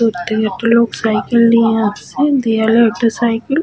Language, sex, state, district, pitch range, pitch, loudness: Bengali, female, West Bengal, Paschim Medinipur, 220-235 Hz, 230 Hz, -14 LUFS